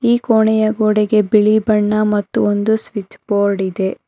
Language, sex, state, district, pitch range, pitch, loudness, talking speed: Kannada, female, Karnataka, Bangalore, 205-220 Hz, 215 Hz, -15 LUFS, 145 wpm